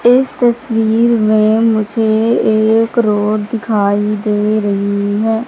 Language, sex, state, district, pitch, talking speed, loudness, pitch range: Hindi, female, Madhya Pradesh, Katni, 220 Hz, 110 wpm, -13 LUFS, 210-230 Hz